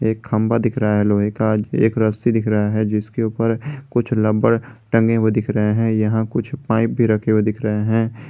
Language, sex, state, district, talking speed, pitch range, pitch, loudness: Hindi, male, Jharkhand, Garhwa, 215 wpm, 110-115 Hz, 110 Hz, -18 LUFS